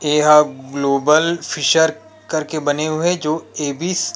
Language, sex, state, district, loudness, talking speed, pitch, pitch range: Chhattisgarhi, male, Chhattisgarh, Rajnandgaon, -17 LUFS, 160 wpm, 155 Hz, 150-165 Hz